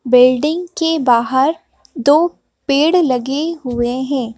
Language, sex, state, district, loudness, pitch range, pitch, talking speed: Hindi, female, Madhya Pradesh, Bhopal, -15 LUFS, 250-320 Hz, 275 Hz, 110 wpm